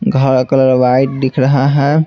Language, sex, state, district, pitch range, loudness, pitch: Hindi, male, Bihar, Patna, 130-140 Hz, -12 LUFS, 135 Hz